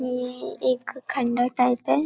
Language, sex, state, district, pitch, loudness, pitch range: Hindi, female, Chhattisgarh, Balrampur, 250 Hz, -25 LUFS, 245-265 Hz